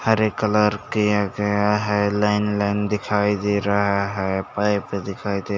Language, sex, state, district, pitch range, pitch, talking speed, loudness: Hindi, male, Chhattisgarh, Bastar, 100-105 Hz, 105 Hz, 150 wpm, -21 LUFS